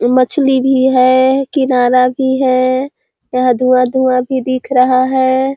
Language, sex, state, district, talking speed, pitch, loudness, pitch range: Hindi, female, Chhattisgarh, Sarguja, 150 wpm, 255 Hz, -12 LUFS, 255-265 Hz